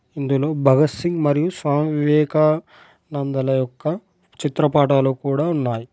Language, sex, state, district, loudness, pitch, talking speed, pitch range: Telugu, male, Telangana, Adilabad, -19 LUFS, 150 Hz, 110 wpm, 135-155 Hz